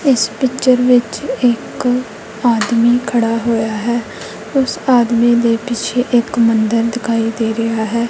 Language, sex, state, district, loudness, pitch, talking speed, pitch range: Punjabi, female, Punjab, Kapurthala, -15 LUFS, 235 Hz, 135 wpm, 230-245 Hz